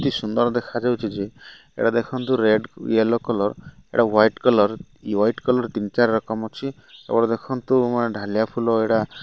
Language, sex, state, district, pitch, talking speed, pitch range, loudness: Odia, male, Odisha, Malkangiri, 115 Hz, 170 wpm, 110-120 Hz, -21 LUFS